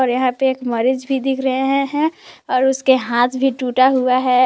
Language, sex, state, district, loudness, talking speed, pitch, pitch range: Hindi, female, Jharkhand, Palamu, -17 LUFS, 190 wpm, 260 Hz, 255-270 Hz